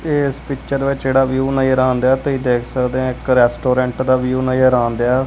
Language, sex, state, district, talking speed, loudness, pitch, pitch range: Punjabi, male, Punjab, Kapurthala, 180 wpm, -16 LUFS, 130 Hz, 125-135 Hz